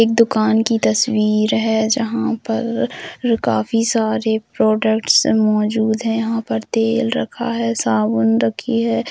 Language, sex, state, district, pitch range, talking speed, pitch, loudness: Hindi, female, Jharkhand, Jamtara, 215-230 Hz, 130 wpm, 220 Hz, -17 LUFS